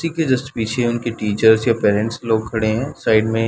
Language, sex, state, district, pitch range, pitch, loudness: Hindi, male, Chhattisgarh, Bilaspur, 110-120 Hz, 115 Hz, -18 LUFS